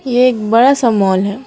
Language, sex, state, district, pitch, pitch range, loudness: Hindi, female, West Bengal, Alipurduar, 235 Hz, 205-255 Hz, -12 LUFS